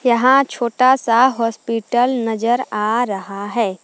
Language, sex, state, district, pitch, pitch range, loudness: Hindi, female, Jharkhand, Palamu, 235 Hz, 220-250 Hz, -17 LUFS